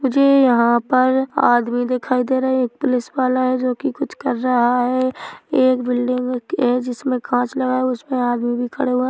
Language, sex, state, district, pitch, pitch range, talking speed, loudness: Hindi, female, Chhattisgarh, Bilaspur, 255 Hz, 245-260 Hz, 190 wpm, -18 LUFS